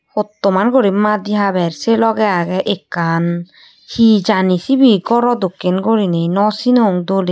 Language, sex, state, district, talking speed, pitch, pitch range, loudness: Chakma, female, Tripura, Unakoti, 140 wpm, 200 Hz, 180-225 Hz, -14 LUFS